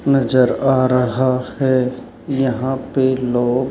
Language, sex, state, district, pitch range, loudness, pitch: Hindi, male, Rajasthan, Jaipur, 125-130 Hz, -17 LUFS, 130 Hz